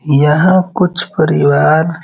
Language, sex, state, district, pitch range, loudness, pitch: Hindi, male, Uttar Pradesh, Varanasi, 150-180 Hz, -11 LUFS, 165 Hz